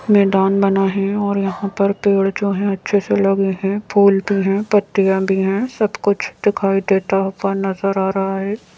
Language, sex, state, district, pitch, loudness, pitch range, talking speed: Hindi, female, Madhya Pradesh, Bhopal, 195 Hz, -17 LUFS, 195-200 Hz, 190 wpm